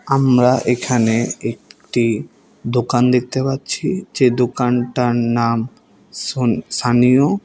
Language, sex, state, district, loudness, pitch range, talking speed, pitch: Bengali, male, West Bengal, Alipurduar, -17 LUFS, 120-130 Hz, 90 wpm, 125 Hz